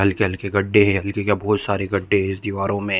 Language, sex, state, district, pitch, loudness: Hindi, male, Chhattisgarh, Bilaspur, 100 Hz, -20 LUFS